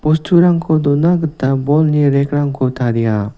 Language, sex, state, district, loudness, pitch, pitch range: Garo, male, Meghalaya, West Garo Hills, -14 LUFS, 145 Hz, 135-155 Hz